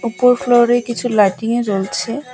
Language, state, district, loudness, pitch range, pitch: Bengali, West Bengal, Alipurduar, -15 LUFS, 225-245 Hz, 240 Hz